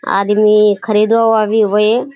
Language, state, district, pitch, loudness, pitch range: Surjapuri, Bihar, Kishanganj, 215 Hz, -12 LUFS, 210-225 Hz